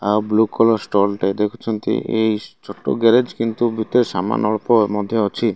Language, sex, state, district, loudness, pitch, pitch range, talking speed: Odia, male, Odisha, Malkangiri, -18 LUFS, 110 Hz, 105-115 Hz, 160 wpm